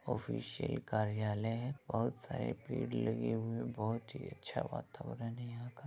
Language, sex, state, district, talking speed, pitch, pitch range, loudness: Hindi, female, Bihar, Begusarai, 165 wpm, 115 Hz, 110-120 Hz, -40 LUFS